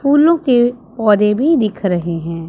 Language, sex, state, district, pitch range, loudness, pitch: Hindi, female, Punjab, Pathankot, 190-270 Hz, -14 LUFS, 225 Hz